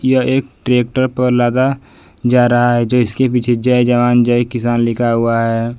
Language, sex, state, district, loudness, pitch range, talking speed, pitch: Hindi, male, Bihar, Kaimur, -14 LUFS, 120-125 Hz, 185 wpm, 120 Hz